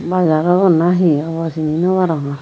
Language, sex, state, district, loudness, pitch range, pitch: Chakma, female, Tripura, Unakoti, -15 LUFS, 155-180 Hz, 165 Hz